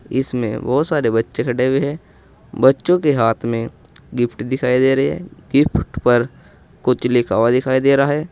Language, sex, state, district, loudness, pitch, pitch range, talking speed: Hindi, male, Uttar Pradesh, Saharanpur, -17 LUFS, 130 Hz, 120-140 Hz, 180 wpm